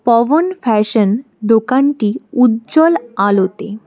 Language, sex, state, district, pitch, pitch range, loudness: Bengali, female, West Bengal, Alipurduar, 230 Hz, 210-265 Hz, -14 LUFS